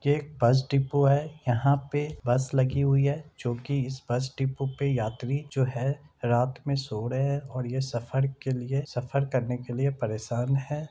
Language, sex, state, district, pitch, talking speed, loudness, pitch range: Hindi, male, Jharkhand, Sahebganj, 135 Hz, 185 wpm, -28 LUFS, 125-140 Hz